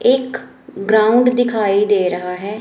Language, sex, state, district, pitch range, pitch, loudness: Hindi, female, Himachal Pradesh, Shimla, 200-245 Hz, 215 Hz, -15 LUFS